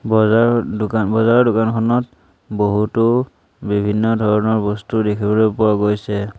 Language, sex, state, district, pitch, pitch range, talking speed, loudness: Assamese, male, Assam, Sonitpur, 110 Hz, 105-115 Hz, 105 wpm, -17 LUFS